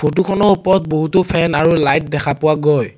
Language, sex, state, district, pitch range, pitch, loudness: Assamese, male, Assam, Sonitpur, 150-185 Hz, 155 Hz, -15 LUFS